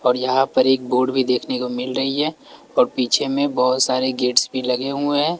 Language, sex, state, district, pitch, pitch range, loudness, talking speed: Hindi, male, Bihar, West Champaran, 130 Hz, 125-135 Hz, -19 LUFS, 235 wpm